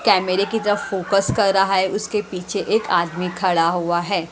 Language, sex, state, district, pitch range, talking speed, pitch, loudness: Hindi, female, Haryana, Jhajjar, 180-205 Hz, 195 wpm, 190 Hz, -20 LUFS